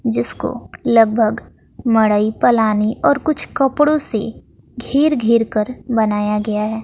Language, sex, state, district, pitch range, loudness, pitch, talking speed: Hindi, female, Bihar, West Champaran, 215-250 Hz, -16 LUFS, 225 Hz, 125 wpm